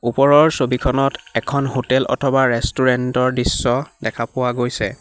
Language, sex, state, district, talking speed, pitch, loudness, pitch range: Assamese, male, Assam, Hailakandi, 130 wpm, 125 Hz, -18 LUFS, 120-135 Hz